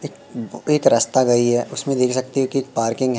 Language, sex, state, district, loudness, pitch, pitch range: Hindi, male, Madhya Pradesh, Katni, -19 LUFS, 130 Hz, 120-135 Hz